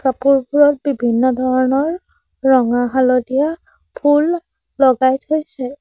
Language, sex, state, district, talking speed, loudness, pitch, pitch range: Assamese, female, Assam, Sonitpur, 80 wpm, -16 LUFS, 270 Hz, 255-290 Hz